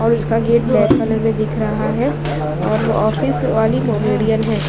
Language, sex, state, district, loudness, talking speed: Hindi, female, Maharashtra, Mumbai Suburban, -17 LUFS, 155 wpm